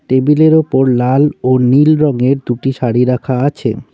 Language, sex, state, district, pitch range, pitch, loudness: Bengali, male, West Bengal, Cooch Behar, 125-145 Hz, 130 Hz, -12 LUFS